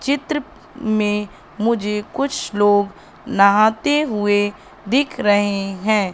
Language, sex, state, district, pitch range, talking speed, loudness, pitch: Hindi, female, Madhya Pradesh, Katni, 205-260 Hz, 100 wpm, -18 LUFS, 210 Hz